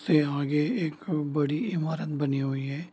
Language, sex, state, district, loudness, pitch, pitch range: Hindi, male, Bihar, Darbhanga, -28 LUFS, 150 Hz, 145-160 Hz